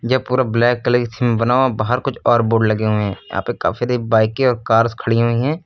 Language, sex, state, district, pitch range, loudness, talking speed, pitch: Hindi, male, Uttar Pradesh, Lucknow, 115-125 Hz, -17 LUFS, 275 wpm, 120 Hz